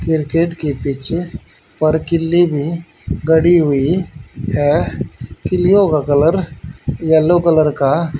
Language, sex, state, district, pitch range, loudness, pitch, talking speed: Hindi, male, Haryana, Rohtak, 145-170 Hz, -15 LUFS, 160 Hz, 100 wpm